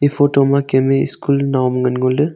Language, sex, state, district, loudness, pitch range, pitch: Wancho, male, Arunachal Pradesh, Longding, -15 LUFS, 130-140 Hz, 140 Hz